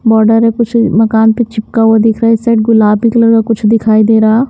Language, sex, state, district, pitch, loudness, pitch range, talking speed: Hindi, female, Himachal Pradesh, Shimla, 225 Hz, -9 LUFS, 220-230 Hz, 265 wpm